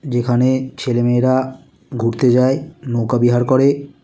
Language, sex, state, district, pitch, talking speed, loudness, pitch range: Bengali, male, West Bengal, Kolkata, 130 Hz, 135 wpm, -16 LUFS, 120-135 Hz